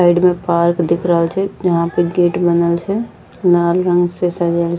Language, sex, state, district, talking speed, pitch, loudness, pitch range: Angika, female, Bihar, Bhagalpur, 200 wpm, 175 Hz, -15 LUFS, 170-180 Hz